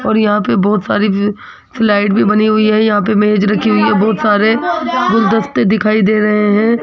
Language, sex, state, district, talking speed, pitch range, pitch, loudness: Hindi, female, Rajasthan, Jaipur, 200 wpm, 210-220 Hz, 210 Hz, -12 LUFS